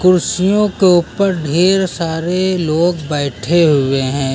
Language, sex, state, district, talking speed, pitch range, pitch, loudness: Hindi, male, Uttar Pradesh, Lucknow, 125 wpm, 150-185 Hz, 170 Hz, -14 LUFS